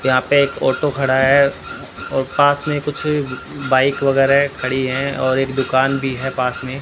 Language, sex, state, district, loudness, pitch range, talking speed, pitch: Hindi, male, Rajasthan, Bikaner, -17 LUFS, 130-140 Hz, 185 wpm, 135 Hz